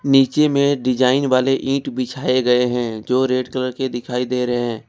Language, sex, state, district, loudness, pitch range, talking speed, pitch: Hindi, male, Jharkhand, Ranchi, -18 LUFS, 125-135 Hz, 195 wpm, 130 Hz